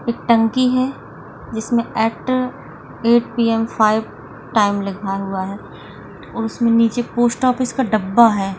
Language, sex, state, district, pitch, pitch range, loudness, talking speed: Hindi, female, Maharashtra, Pune, 230 Hz, 215-240 Hz, -18 LUFS, 135 wpm